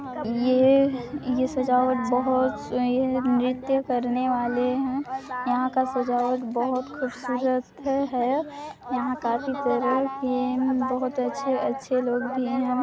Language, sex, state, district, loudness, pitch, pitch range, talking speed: Hindi, female, Chhattisgarh, Sarguja, -25 LUFS, 255 Hz, 250-265 Hz, 105 wpm